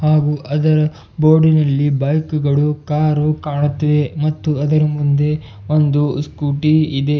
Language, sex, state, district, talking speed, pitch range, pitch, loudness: Kannada, male, Karnataka, Bidar, 110 wpm, 145-155 Hz, 150 Hz, -16 LUFS